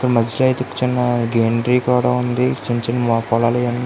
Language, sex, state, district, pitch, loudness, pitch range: Telugu, male, Andhra Pradesh, Visakhapatnam, 120 Hz, -18 LUFS, 115-125 Hz